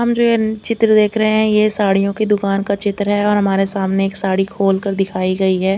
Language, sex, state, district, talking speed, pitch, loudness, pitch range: Hindi, female, Punjab, Fazilka, 250 wpm, 200 Hz, -16 LUFS, 195-215 Hz